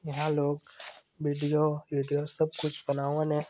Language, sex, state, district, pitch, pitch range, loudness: Chhattisgarhi, male, Chhattisgarh, Balrampur, 150 Hz, 145-155 Hz, -30 LUFS